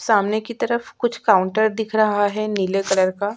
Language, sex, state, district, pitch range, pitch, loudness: Hindi, female, Chhattisgarh, Sukma, 200-220 Hz, 215 Hz, -20 LUFS